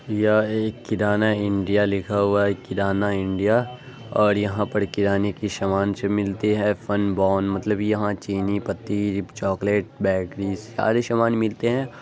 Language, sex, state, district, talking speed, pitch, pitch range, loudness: Angika, male, Bihar, Araria, 150 wpm, 105 Hz, 100-110 Hz, -23 LUFS